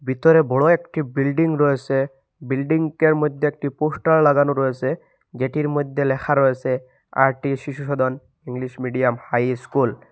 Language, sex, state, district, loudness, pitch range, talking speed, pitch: Bengali, male, Assam, Hailakandi, -20 LUFS, 130-150 Hz, 135 wpm, 140 Hz